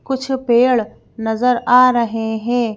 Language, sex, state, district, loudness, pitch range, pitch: Hindi, female, Madhya Pradesh, Bhopal, -16 LUFS, 225-250 Hz, 240 Hz